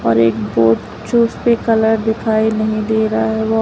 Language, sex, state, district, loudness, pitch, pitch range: Hindi, female, Uttar Pradesh, Lalitpur, -15 LUFS, 220 Hz, 215-225 Hz